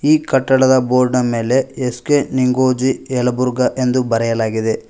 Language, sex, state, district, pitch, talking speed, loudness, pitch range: Kannada, male, Karnataka, Koppal, 125 Hz, 110 wpm, -16 LUFS, 125-130 Hz